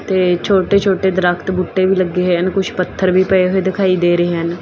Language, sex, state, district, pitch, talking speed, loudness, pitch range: Punjabi, female, Punjab, Fazilka, 185 Hz, 220 wpm, -15 LUFS, 175-190 Hz